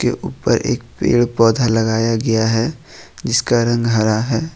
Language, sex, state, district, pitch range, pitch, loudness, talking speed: Hindi, male, Jharkhand, Ranchi, 115-120 Hz, 115 Hz, -17 LUFS, 155 wpm